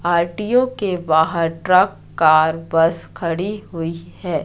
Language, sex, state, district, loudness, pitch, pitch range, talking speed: Hindi, female, Madhya Pradesh, Katni, -18 LUFS, 170 Hz, 165-185 Hz, 120 wpm